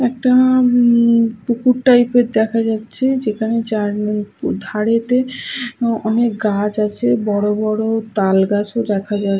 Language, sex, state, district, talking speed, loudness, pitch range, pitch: Bengali, female, West Bengal, Paschim Medinipur, 115 wpm, -16 LUFS, 210-245 Hz, 225 Hz